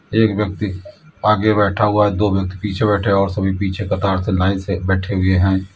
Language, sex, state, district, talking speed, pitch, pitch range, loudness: Hindi, male, Uttar Pradesh, Lalitpur, 230 wpm, 100 Hz, 95-105 Hz, -17 LUFS